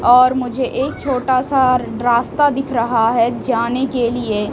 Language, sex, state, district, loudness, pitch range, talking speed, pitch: Hindi, female, Chhattisgarh, Raipur, -16 LUFS, 235-260 Hz, 175 wpm, 250 Hz